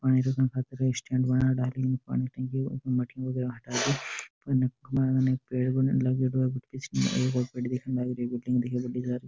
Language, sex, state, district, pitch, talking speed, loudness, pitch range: Marwari, male, Rajasthan, Nagaur, 130 Hz, 115 wpm, -29 LUFS, 125-130 Hz